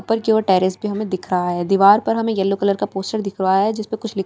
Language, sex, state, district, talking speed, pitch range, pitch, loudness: Hindi, female, Bihar, Katihar, 340 wpm, 190-220 Hz, 200 Hz, -18 LUFS